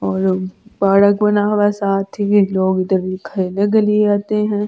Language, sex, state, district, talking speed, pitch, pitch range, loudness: Hindi, female, Delhi, New Delhi, 155 wpm, 200 Hz, 190-210 Hz, -16 LUFS